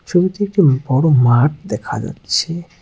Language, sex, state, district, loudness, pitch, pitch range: Bengali, male, West Bengal, Cooch Behar, -16 LUFS, 165 Hz, 135-185 Hz